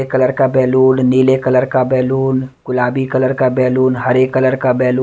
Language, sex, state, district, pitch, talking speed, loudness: Hindi, male, Delhi, New Delhi, 130 Hz, 190 wpm, -14 LUFS